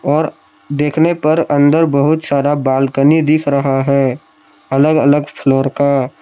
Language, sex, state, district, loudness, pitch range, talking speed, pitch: Hindi, male, Jharkhand, Palamu, -13 LUFS, 135-150 Hz, 135 wpm, 140 Hz